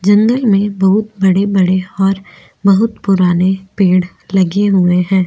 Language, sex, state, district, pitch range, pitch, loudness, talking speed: Hindi, female, Maharashtra, Aurangabad, 185-200 Hz, 195 Hz, -13 LUFS, 135 wpm